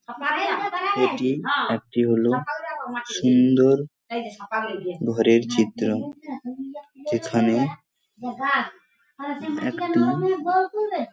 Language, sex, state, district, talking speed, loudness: Bengali, male, West Bengal, Paschim Medinipur, 50 wpm, -23 LUFS